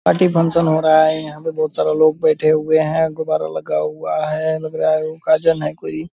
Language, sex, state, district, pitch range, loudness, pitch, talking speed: Hindi, male, Bihar, Purnia, 155-160 Hz, -17 LUFS, 155 Hz, 245 wpm